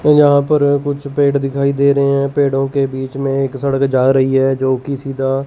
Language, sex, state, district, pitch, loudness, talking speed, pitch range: Hindi, male, Chandigarh, Chandigarh, 140 Hz, -15 LUFS, 220 wpm, 135-140 Hz